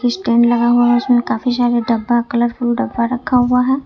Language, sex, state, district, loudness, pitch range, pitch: Hindi, female, Jharkhand, Ranchi, -15 LUFS, 235-250 Hz, 240 Hz